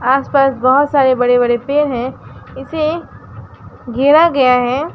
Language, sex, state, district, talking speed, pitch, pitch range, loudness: Hindi, female, West Bengal, Alipurduar, 145 wpm, 270 Hz, 250-290 Hz, -13 LUFS